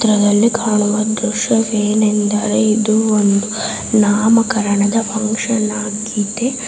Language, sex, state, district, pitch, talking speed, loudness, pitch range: Kannada, female, Karnataka, Raichur, 215 Hz, 70 wpm, -15 LUFS, 210-225 Hz